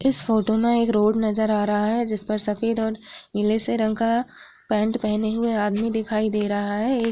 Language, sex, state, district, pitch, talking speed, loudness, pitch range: Hindi, female, Uttar Pradesh, Gorakhpur, 220 Hz, 225 wpm, -22 LUFS, 210-230 Hz